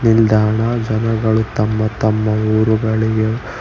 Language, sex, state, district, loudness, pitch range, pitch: Kannada, male, Karnataka, Bangalore, -16 LUFS, 110-115 Hz, 110 Hz